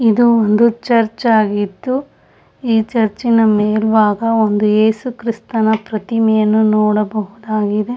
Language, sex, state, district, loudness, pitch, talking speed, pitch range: Kannada, female, Karnataka, Shimoga, -15 LUFS, 220 Hz, 85 wpm, 215-230 Hz